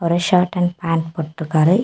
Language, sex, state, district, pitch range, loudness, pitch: Tamil, female, Tamil Nadu, Kanyakumari, 160-175 Hz, -19 LUFS, 170 Hz